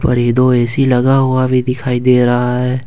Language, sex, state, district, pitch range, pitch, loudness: Hindi, male, Jharkhand, Ranchi, 125-130 Hz, 125 Hz, -13 LUFS